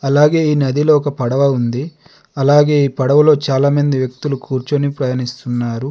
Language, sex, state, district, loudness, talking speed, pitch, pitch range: Telugu, male, Telangana, Adilabad, -15 LUFS, 130 wpm, 140 Hz, 130-145 Hz